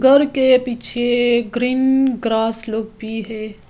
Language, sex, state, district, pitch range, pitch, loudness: Hindi, female, Arunachal Pradesh, Lower Dibang Valley, 225-260 Hz, 240 Hz, -18 LUFS